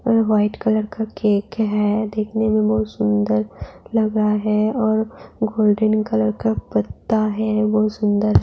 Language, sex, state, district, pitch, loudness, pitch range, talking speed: Hindi, female, Uttar Pradesh, Budaun, 215 Hz, -19 LUFS, 205-220 Hz, 150 wpm